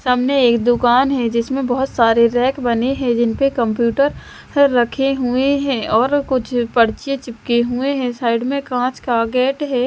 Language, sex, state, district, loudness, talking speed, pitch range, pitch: Hindi, female, Himachal Pradesh, Shimla, -17 LUFS, 165 wpm, 235-270 Hz, 250 Hz